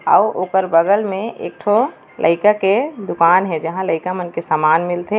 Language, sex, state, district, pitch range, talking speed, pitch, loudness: Chhattisgarhi, female, Chhattisgarh, Raigarh, 170-210 Hz, 185 wpm, 190 Hz, -17 LUFS